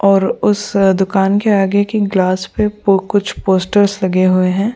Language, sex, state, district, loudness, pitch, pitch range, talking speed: Hindi, female, Goa, North and South Goa, -14 LUFS, 195 Hz, 190-205 Hz, 165 wpm